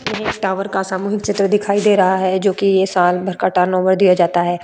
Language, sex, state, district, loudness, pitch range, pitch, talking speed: Hindi, female, Uttar Pradesh, Budaun, -16 LUFS, 185-195 Hz, 190 Hz, 245 wpm